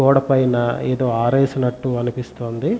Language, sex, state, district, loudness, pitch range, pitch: Telugu, male, Andhra Pradesh, Chittoor, -19 LUFS, 120-135 Hz, 125 Hz